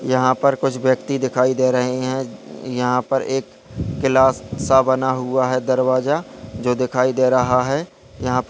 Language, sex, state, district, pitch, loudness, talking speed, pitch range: Hindi, male, Bihar, Begusarai, 130 Hz, -19 LUFS, 185 wpm, 125-130 Hz